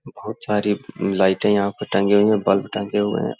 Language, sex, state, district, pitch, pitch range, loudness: Hindi, male, Uttar Pradesh, Hamirpur, 105 Hz, 100-105 Hz, -20 LUFS